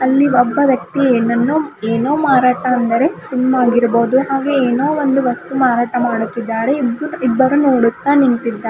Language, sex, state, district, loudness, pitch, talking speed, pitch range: Kannada, female, Karnataka, Bidar, -15 LUFS, 255 Hz, 130 wpm, 240-275 Hz